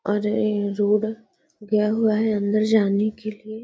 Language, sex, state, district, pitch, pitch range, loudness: Hindi, female, Bihar, Gaya, 215 Hz, 210-220 Hz, -22 LUFS